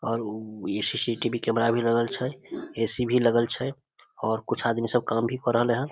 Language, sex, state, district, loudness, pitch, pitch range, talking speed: Maithili, male, Bihar, Samastipur, -26 LUFS, 115 Hz, 115-125 Hz, 215 wpm